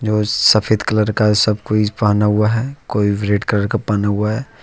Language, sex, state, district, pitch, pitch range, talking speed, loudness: Hindi, male, Jharkhand, Ranchi, 105 Hz, 105-110 Hz, 195 wpm, -16 LUFS